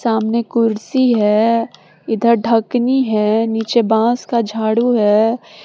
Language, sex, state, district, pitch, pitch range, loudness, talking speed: Hindi, female, Jharkhand, Palamu, 230 Hz, 220-240 Hz, -15 LUFS, 115 wpm